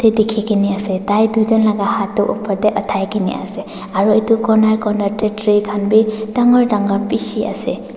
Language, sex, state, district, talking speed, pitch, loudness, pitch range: Nagamese, female, Nagaland, Dimapur, 180 wpm, 215 Hz, -16 LUFS, 205-220 Hz